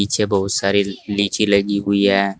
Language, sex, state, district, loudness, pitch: Hindi, male, Uttar Pradesh, Shamli, -18 LUFS, 100 Hz